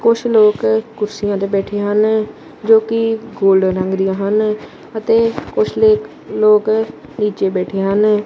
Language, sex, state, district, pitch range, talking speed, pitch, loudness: Punjabi, male, Punjab, Kapurthala, 200-225 Hz, 140 wpm, 215 Hz, -15 LUFS